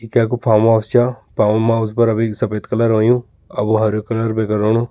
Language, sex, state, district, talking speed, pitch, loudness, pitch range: Kumaoni, male, Uttarakhand, Tehri Garhwal, 220 wpm, 110 Hz, -16 LUFS, 110-115 Hz